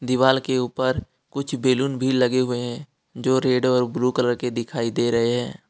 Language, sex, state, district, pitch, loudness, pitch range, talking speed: Hindi, male, Jharkhand, Deoghar, 125 Hz, -22 LUFS, 120-130 Hz, 200 wpm